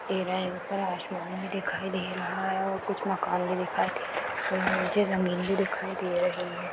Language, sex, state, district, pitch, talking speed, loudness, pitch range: Hindi, female, Chhattisgarh, Rajnandgaon, 185 Hz, 195 wpm, -30 LUFS, 180-195 Hz